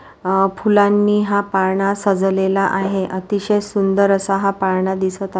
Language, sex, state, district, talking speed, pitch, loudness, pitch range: Marathi, female, Maharashtra, Pune, 145 wpm, 195 Hz, -17 LUFS, 190-200 Hz